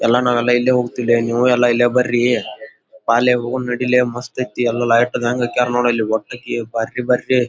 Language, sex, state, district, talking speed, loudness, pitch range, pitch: Kannada, male, Karnataka, Gulbarga, 160 wpm, -17 LUFS, 120-125 Hz, 120 Hz